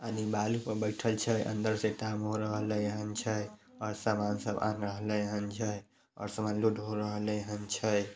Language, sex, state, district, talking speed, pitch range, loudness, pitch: Maithili, male, Bihar, Samastipur, 160 wpm, 105-110 Hz, -34 LUFS, 105 Hz